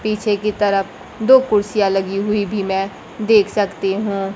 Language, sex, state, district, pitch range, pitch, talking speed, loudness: Hindi, female, Bihar, Kaimur, 195-215 Hz, 205 Hz, 165 wpm, -17 LUFS